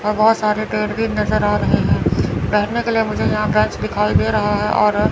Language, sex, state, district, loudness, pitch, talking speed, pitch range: Hindi, female, Chandigarh, Chandigarh, -17 LUFS, 215 Hz, 235 wpm, 210-225 Hz